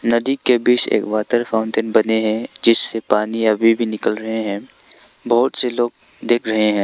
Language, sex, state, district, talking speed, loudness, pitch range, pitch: Hindi, male, Arunachal Pradesh, Lower Dibang Valley, 185 wpm, -17 LUFS, 110-120 Hz, 115 Hz